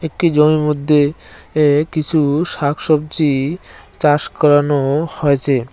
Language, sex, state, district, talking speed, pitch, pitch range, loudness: Bengali, male, West Bengal, Cooch Behar, 95 wpm, 150 Hz, 145-155 Hz, -15 LUFS